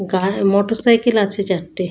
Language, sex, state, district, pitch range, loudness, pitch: Bengali, female, West Bengal, Malda, 190-220 Hz, -17 LUFS, 200 Hz